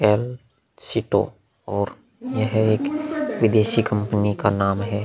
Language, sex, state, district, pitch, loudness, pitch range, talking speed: Hindi, male, Uttar Pradesh, Muzaffarnagar, 110 Hz, -22 LUFS, 105-125 Hz, 105 wpm